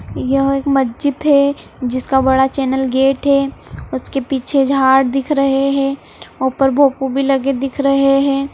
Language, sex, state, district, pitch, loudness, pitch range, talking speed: Hindi, female, Bihar, Saharsa, 275 Hz, -15 LUFS, 265-275 Hz, 175 wpm